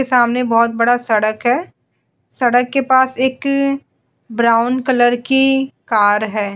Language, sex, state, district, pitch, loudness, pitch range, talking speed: Hindi, female, Uttar Pradesh, Budaun, 245 Hz, -15 LUFS, 230-265 Hz, 130 wpm